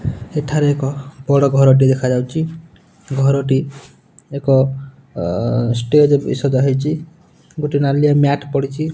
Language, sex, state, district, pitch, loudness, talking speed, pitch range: Odia, male, Odisha, Nuapada, 140 Hz, -16 LUFS, 120 wpm, 135-150 Hz